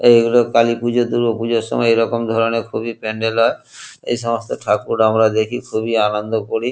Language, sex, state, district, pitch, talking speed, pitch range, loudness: Bengali, male, West Bengal, Kolkata, 115 Hz, 135 wpm, 110-115 Hz, -17 LUFS